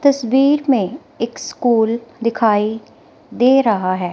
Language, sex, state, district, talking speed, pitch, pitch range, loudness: Hindi, female, Himachal Pradesh, Shimla, 115 wpm, 230 Hz, 220-265 Hz, -17 LUFS